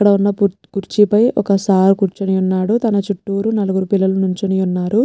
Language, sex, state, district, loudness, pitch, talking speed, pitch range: Telugu, female, Telangana, Nalgonda, -16 LUFS, 195 Hz, 140 wpm, 190-205 Hz